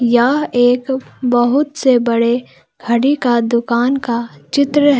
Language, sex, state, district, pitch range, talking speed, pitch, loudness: Hindi, female, Jharkhand, Palamu, 235-275 Hz, 120 wpm, 245 Hz, -15 LUFS